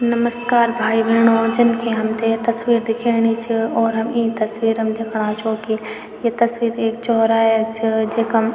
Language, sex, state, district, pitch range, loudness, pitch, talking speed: Garhwali, female, Uttarakhand, Tehri Garhwal, 225-235 Hz, -18 LUFS, 225 Hz, 175 wpm